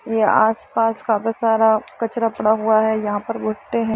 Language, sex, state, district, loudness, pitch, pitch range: Hindi, female, Uttar Pradesh, Muzaffarnagar, -19 LUFS, 220 Hz, 215-225 Hz